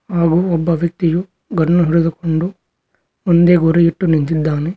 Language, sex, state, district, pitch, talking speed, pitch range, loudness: Kannada, male, Karnataka, Koppal, 170 Hz, 100 wpm, 165-175 Hz, -15 LUFS